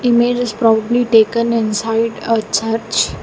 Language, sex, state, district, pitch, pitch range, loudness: English, female, Karnataka, Bangalore, 225 Hz, 225-235 Hz, -15 LUFS